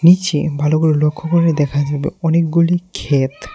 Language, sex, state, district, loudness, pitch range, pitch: Bengali, male, Tripura, West Tripura, -16 LUFS, 145-170 Hz, 155 Hz